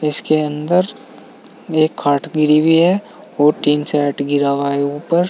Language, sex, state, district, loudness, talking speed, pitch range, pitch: Hindi, male, Uttar Pradesh, Saharanpur, -16 LUFS, 160 wpm, 145-160 Hz, 150 Hz